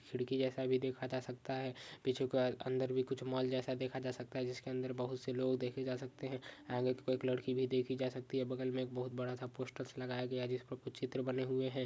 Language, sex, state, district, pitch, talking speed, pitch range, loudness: Hindi, male, Maharashtra, Pune, 130 Hz, 240 wpm, 125-130 Hz, -40 LUFS